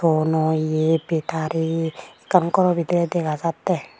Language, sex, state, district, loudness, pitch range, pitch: Chakma, female, Tripura, Unakoti, -21 LUFS, 155-170 Hz, 165 Hz